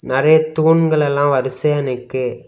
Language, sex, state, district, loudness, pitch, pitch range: Tamil, male, Tamil Nadu, Kanyakumari, -16 LUFS, 145 Hz, 130-155 Hz